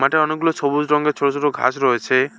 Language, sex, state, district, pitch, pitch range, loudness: Bengali, male, West Bengal, Alipurduar, 145 Hz, 135-150 Hz, -18 LUFS